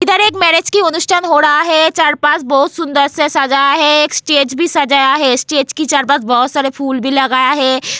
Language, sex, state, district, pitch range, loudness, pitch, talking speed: Hindi, female, Goa, North and South Goa, 275-320 Hz, -11 LUFS, 295 Hz, 215 wpm